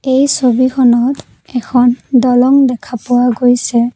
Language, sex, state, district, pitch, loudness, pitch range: Assamese, female, Assam, Kamrup Metropolitan, 250 Hz, -12 LUFS, 245-260 Hz